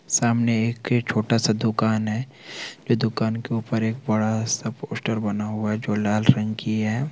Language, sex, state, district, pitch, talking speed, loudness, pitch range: Hindi, male, Chhattisgarh, Bilaspur, 110 Hz, 175 wpm, -23 LUFS, 110-115 Hz